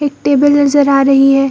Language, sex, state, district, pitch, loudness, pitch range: Hindi, female, Bihar, Purnia, 280 Hz, -10 LUFS, 275-285 Hz